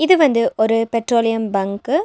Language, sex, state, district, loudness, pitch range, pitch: Tamil, female, Tamil Nadu, Nilgiris, -17 LUFS, 220-285 Hz, 230 Hz